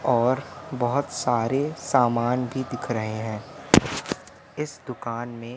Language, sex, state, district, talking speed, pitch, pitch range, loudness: Hindi, male, Madhya Pradesh, Umaria, 120 wpm, 125 Hz, 115-130 Hz, -25 LUFS